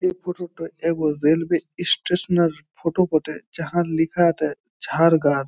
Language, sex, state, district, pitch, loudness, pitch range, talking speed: Bengali, male, West Bengal, Jhargram, 165 Hz, -22 LUFS, 155-175 Hz, 130 wpm